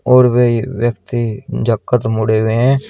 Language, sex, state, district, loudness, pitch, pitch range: Hindi, male, Uttar Pradesh, Shamli, -15 LUFS, 120 Hz, 110-125 Hz